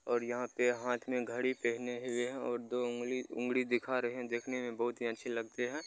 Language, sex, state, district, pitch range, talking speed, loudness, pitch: Maithili, male, Bihar, Begusarai, 120-125 Hz, 235 wpm, -36 LUFS, 120 Hz